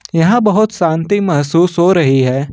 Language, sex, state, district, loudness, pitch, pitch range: Hindi, male, Jharkhand, Ranchi, -12 LUFS, 170 Hz, 145-200 Hz